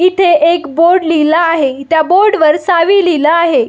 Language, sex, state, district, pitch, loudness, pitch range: Marathi, female, Maharashtra, Solapur, 335 Hz, -10 LUFS, 315-365 Hz